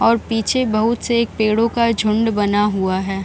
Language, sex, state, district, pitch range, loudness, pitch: Hindi, female, Bihar, Jahanabad, 205-230 Hz, -17 LUFS, 220 Hz